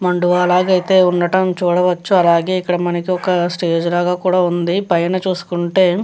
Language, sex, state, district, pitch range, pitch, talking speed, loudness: Telugu, female, Andhra Pradesh, Chittoor, 175-185 Hz, 180 Hz, 150 wpm, -15 LUFS